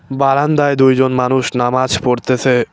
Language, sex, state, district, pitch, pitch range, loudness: Bengali, male, West Bengal, Cooch Behar, 130 Hz, 125-135 Hz, -14 LUFS